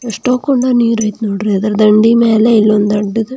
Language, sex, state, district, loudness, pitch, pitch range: Kannada, female, Karnataka, Belgaum, -12 LUFS, 225 Hz, 210-235 Hz